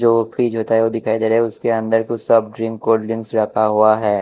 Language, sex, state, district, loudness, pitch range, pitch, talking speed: Hindi, male, Chhattisgarh, Raipur, -17 LUFS, 110-115 Hz, 115 Hz, 255 wpm